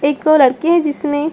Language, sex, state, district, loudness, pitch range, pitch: Hindi, female, Bihar, Saran, -14 LUFS, 285-310 Hz, 295 Hz